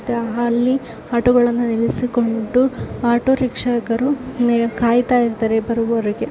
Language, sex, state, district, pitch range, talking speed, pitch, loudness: Kannada, female, Karnataka, Raichur, 230-245 Hz, 85 wpm, 240 Hz, -18 LUFS